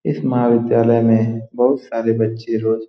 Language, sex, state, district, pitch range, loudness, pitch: Hindi, male, Bihar, Saran, 115-120 Hz, -17 LUFS, 115 Hz